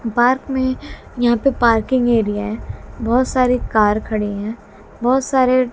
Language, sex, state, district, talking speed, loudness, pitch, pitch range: Hindi, female, Haryana, Jhajjar, 145 wpm, -17 LUFS, 240 Hz, 220-255 Hz